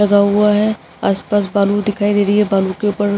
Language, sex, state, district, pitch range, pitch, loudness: Hindi, female, Uttar Pradesh, Jyotiba Phule Nagar, 200-205 Hz, 205 Hz, -15 LUFS